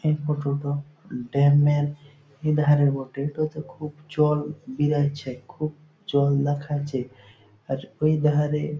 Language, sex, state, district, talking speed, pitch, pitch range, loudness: Bengali, male, West Bengal, Jhargram, 115 wpm, 145 Hz, 140-150 Hz, -24 LUFS